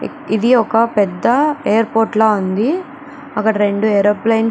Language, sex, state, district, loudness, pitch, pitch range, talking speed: Telugu, female, Andhra Pradesh, Chittoor, -15 LUFS, 225 Hz, 210-250 Hz, 135 wpm